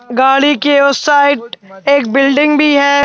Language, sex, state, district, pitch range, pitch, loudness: Hindi, male, Madhya Pradesh, Bhopal, 265-285 Hz, 280 Hz, -11 LUFS